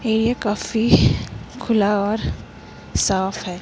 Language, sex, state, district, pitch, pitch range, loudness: Hindi, female, Himachal Pradesh, Shimla, 210 Hz, 200-225 Hz, -20 LUFS